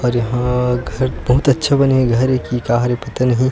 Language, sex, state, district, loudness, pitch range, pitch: Chhattisgarhi, male, Chhattisgarh, Sukma, -16 LUFS, 120-130 Hz, 125 Hz